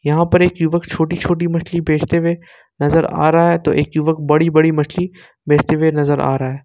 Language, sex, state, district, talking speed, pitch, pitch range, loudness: Hindi, male, Jharkhand, Ranchi, 225 wpm, 160 Hz, 150-170 Hz, -16 LUFS